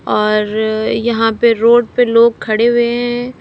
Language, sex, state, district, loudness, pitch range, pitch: Hindi, female, Uttar Pradesh, Lalitpur, -13 LUFS, 220-240 Hz, 235 Hz